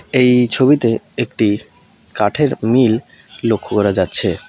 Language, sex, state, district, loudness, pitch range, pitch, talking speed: Bengali, male, West Bengal, Alipurduar, -15 LUFS, 110-130 Hz, 120 Hz, 105 wpm